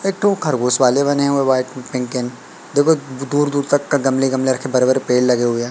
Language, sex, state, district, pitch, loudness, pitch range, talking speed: Hindi, male, Madhya Pradesh, Katni, 130 Hz, -17 LUFS, 125-145 Hz, 220 wpm